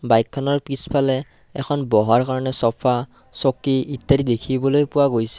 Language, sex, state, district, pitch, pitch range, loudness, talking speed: Assamese, male, Assam, Kamrup Metropolitan, 130 Hz, 120-140 Hz, -20 LUFS, 120 wpm